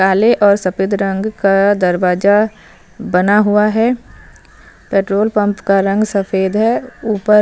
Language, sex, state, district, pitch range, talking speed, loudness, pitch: Hindi, female, Punjab, Fazilka, 195-215 Hz, 140 wpm, -14 LUFS, 205 Hz